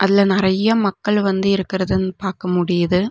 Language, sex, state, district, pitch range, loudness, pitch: Tamil, female, Tamil Nadu, Nilgiris, 185-200 Hz, -18 LUFS, 195 Hz